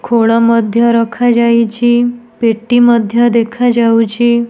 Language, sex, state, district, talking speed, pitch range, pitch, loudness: Odia, female, Odisha, Nuapada, 95 wpm, 230-240 Hz, 235 Hz, -11 LUFS